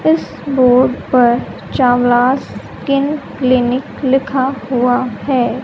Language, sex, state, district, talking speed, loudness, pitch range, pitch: Hindi, male, Haryana, Jhajjar, 95 wpm, -14 LUFS, 245-270 Hz, 255 Hz